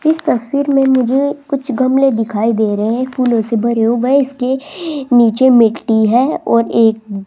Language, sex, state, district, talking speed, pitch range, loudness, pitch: Hindi, female, Rajasthan, Jaipur, 180 wpm, 225-270 Hz, -13 LUFS, 250 Hz